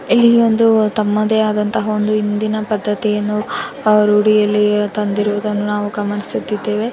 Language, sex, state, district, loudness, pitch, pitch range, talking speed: Kannada, female, Karnataka, Chamarajanagar, -16 LUFS, 210 Hz, 210-215 Hz, 95 wpm